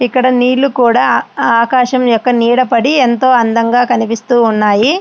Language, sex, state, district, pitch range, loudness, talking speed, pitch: Telugu, female, Andhra Pradesh, Srikakulam, 230-255 Hz, -11 LUFS, 110 wpm, 245 Hz